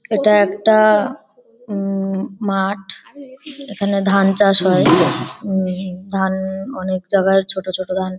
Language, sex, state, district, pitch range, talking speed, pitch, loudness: Bengali, female, West Bengal, Paschim Medinipur, 190-210 Hz, 115 wpm, 195 Hz, -17 LUFS